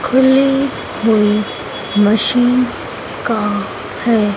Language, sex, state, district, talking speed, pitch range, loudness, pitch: Hindi, female, Madhya Pradesh, Dhar, 70 wpm, 205-250 Hz, -15 LUFS, 220 Hz